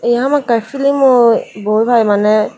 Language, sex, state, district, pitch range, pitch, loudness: Chakma, female, Tripura, Dhalai, 215-265 Hz, 235 Hz, -12 LUFS